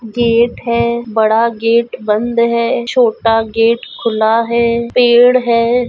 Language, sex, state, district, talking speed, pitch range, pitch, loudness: Hindi, female, Goa, North and South Goa, 120 wpm, 225-235 Hz, 235 Hz, -13 LUFS